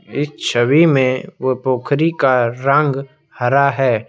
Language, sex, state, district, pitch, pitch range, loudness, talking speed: Hindi, male, Assam, Kamrup Metropolitan, 135 Hz, 130-145 Hz, -16 LUFS, 130 wpm